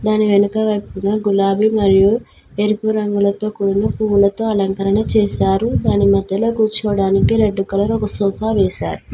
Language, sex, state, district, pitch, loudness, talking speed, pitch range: Telugu, female, Telangana, Mahabubabad, 205 Hz, -16 LUFS, 125 wpm, 195-215 Hz